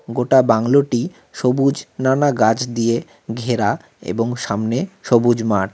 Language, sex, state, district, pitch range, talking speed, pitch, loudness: Bengali, male, West Bengal, Cooch Behar, 115-130 Hz, 115 wpm, 120 Hz, -18 LUFS